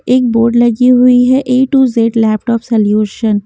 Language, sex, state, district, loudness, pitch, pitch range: Hindi, female, Haryana, Jhajjar, -10 LUFS, 235 Hz, 225-250 Hz